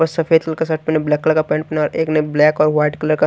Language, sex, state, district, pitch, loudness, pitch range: Hindi, male, Bihar, Kaimur, 155 Hz, -16 LUFS, 150-160 Hz